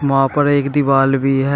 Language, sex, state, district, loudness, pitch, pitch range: Hindi, male, Uttar Pradesh, Shamli, -15 LUFS, 135 Hz, 135-145 Hz